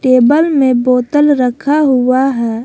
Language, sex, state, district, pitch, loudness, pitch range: Hindi, female, Jharkhand, Palamu, 260 Hz, -11 LUFS, 250-290 Hz